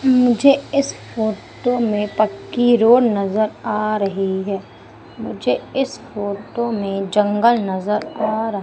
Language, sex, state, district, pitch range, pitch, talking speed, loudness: Hindi, female, Madhya Pradesh, Umaria, 205-240 Hz, 215 Hz, 125 wpm, -19 LUFS